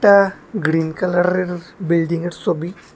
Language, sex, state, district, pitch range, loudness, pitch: Bengali, male, Tripura, West Tripura, 165-185 Hz, -19 LUFS, 175 Hz